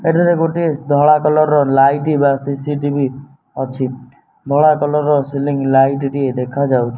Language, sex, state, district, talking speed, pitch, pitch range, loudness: Odia, male, Odisha, Nuapada, 145 wpm, 140 Hz, 135-150 Hz, -15 LUFS